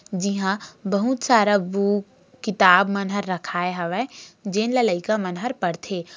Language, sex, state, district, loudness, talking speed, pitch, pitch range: Hindi, female, Chhattisgarh, Raigarh, -22 LUFS, 155 wpm, 200 Hz, 180-215 Hz